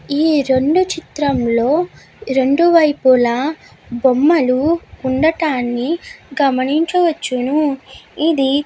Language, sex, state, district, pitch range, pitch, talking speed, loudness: Telugu, female, Andhra Pradesh, Guntur, 260-320 Hz, 285 Hz, 70 wpm, -16 LUFS